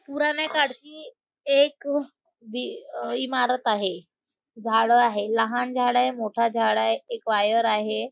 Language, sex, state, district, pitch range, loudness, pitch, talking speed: Marathi, female, Maharashtra, Nagpur, 220-280 Hz, -23 LUFS, 245 Hz, 105 wpm